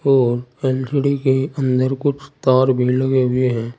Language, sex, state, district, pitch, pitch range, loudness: Hindi, male, Uttar Pradesh, Saharanpur, 130 Hz, 125-135 Hz, -18 LUFS